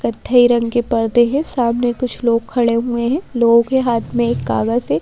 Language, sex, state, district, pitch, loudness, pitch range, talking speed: Hindi, female, Madhya Pradesh, Bhopal, 235 Hz, -16 LUFS, 230-245 Hz, 215 wpm